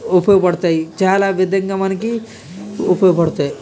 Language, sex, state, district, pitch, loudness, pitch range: Telugu, male, Andhra Pradesh, Krishna, 185 Hz, -16 LUFS, 175-195 Hz